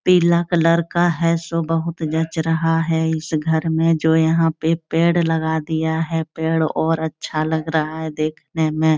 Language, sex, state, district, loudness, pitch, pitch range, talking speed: Hindi, female, Bihar, Supaul, -19 LUFS, 160 Hz, 160-165 Hz, 180 wpm